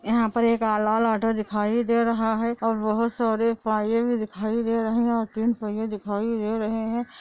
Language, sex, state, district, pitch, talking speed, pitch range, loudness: Hindi, female, Andhra Pradesh, Anantapur, 225 Hz, 185 wpm, 215-230 Hz, -24 LUFS